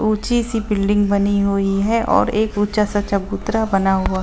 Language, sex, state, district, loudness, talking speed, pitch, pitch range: Hindi, female, Bihar, Gaya, -18 LUFS, 170 wpm, 205 Hz, 200-215 Hz